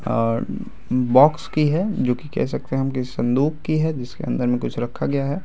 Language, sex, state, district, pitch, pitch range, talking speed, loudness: Hindi, male, Bihar, Araria, 135 Hz, 120-155 Hz, 220 wpm, -21 LUFS